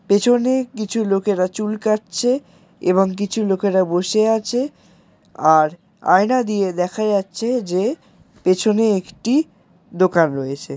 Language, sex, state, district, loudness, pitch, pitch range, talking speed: Bengali, male, West Bengal, Jalpaiguri, -19 LUFS, 200 Hz, 185-220 Hz, 110 wpm